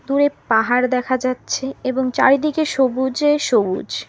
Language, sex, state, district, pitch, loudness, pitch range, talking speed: Bengali, female, West Bengal, Alipurduar, 265 Hz, -18 LUFS, 255-285 Hz, 115 wpm